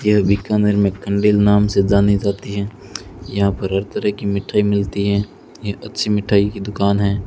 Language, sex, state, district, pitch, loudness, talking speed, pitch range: Hindi, male, Rajasthan, Bikaner, 100 Hz, -18 LUFS, 190 wpm, 100-105 Hz